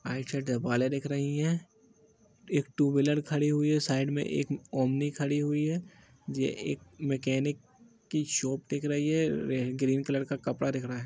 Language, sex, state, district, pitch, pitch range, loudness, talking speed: Hindi, male, Bihar, East Champaran, 145 Hz, 135-150 Hz, -30 LUFS, 185 wpm